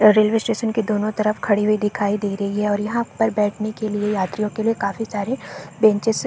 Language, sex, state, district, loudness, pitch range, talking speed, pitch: Hindi, female, Chhattisgarh, Bastar, -21 LUFS, 205-225 Hz, 230 wpm, 215 Hz